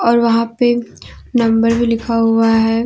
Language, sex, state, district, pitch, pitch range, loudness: Hindi, female, Jharkhand, Deoghar, 230 Hz, 225-235 Hz, -14 LUFS